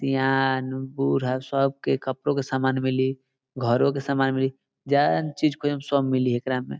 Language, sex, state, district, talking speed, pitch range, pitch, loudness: Bhojpuri, male, Bihar, Saran, 160 wpm, 130-140 Hz, 135 Hz, -24 LUFS